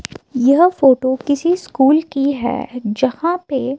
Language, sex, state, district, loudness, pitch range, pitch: Hindi, female, Himachal Pradesh, Shimla, -16 LUFS, 255-300 Hz, 270 Hz